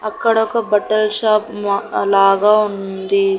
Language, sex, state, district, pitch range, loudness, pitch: Telugu, female, Andhra Pradesh, Annamaya, 195-215 Hz, -16 LUFS, 210 Hz